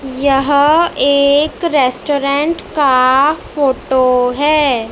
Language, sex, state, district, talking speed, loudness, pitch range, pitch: Hindi, male, Madhya Pradesh, Dhar, 75 wpm, -13 LUFS, 260-295 Hz, 280 Hz